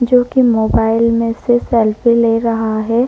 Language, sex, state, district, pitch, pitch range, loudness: Hindi, female, Chhattisgarh, Korba, 230 Hz, 225-240 Hz, -14 LUFS